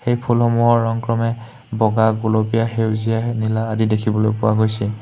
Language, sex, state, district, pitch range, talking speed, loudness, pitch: Assamese, male, Assam, Hailakandi, 110-115 Hz, 145 wpm, -18 LUFS, 110 Hz